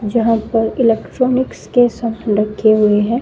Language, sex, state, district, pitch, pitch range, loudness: Hindi, female, Uttar Pradesh, Shamli, 225 Hz, 215-235 Hz, -15 LUFS